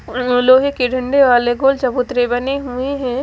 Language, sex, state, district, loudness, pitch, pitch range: Hindi, female, Haryana, Charkhi Dadri, -15 LUFS, 255 Hz, 250-270 Hz